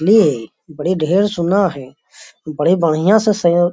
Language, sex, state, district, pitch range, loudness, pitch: Magahi, male, Bihar, Lakhisarai, 155-195 Hz, -15 LUFS, 175 Hz